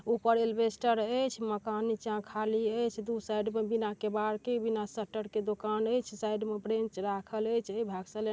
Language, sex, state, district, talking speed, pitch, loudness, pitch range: Maithili, female, Bihar, Darbhanga, 185 wpm, 220 Hz, -33 LUFS, 215-230 Hz